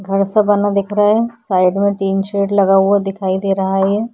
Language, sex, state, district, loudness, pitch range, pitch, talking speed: Hindi, female, Uttar Pradesh, Budaun, -15 LUFS, 195-205 Hz, 200 Hz, 260 wpm